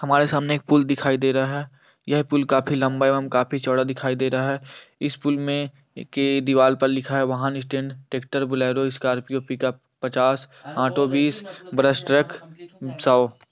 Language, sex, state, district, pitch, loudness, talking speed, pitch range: Hindi, male, Chhattisgarh, Raigarh, 135 Hz, -22 LUFS, 175 wpm, 130-140 Hz